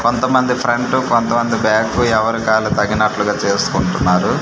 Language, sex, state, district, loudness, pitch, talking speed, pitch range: Telugu, male, Andhra Pradesh, Manyam, -15 LUFS, 115 Hz, 135 wpm, 110-120 Hz